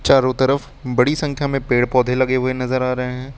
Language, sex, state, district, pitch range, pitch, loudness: Hindi, male, Uttar Pradesh, Lucknow, 125-135 Hz, 130 Hz, -18 LUFS